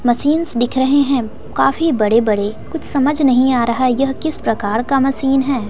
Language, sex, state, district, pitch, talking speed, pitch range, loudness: Hindi, female, Bihar, West Champaran, 265 Hz, 200 wpm, 235-280 Hz, -16 LUFS